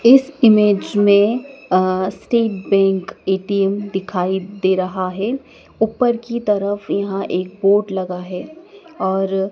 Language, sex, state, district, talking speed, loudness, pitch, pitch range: Hindi, female, Madhya Pradesh, Dhar, 125 wpm, -18 LUFS, 200 Hz, 190-225 Hz